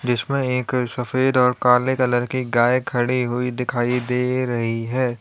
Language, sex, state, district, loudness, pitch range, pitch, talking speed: Hindi, male, Uttar Pradesh, Lalitpur, -20 LUFS, 120-130 Hz, 125 Hz, 160 wpm